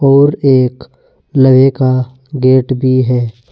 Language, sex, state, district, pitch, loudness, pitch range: Hindi, male, Uttar Pradesh, Saharanpur, 130 Hz, -11 LUFS, 130-135 Hz